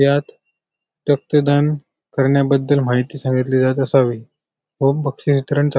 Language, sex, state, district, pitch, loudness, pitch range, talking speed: Marathi, male, Maharashtra, Sindhudurg, 140 Hz, -18 LUFS, 130-145 Hz, 125 wpm